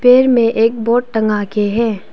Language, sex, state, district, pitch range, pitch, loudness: Hindi, female, Arunachal Pradesh, Papum Pare, 215-240 Hz, 230 Hz, -14 LUFS